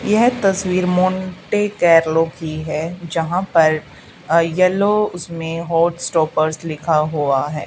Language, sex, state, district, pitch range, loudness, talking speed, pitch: Hindi, female, Haryana, Charkhi Dadri, 160-185 Hz, -18 LUFS, 125 wpm, 170 Hz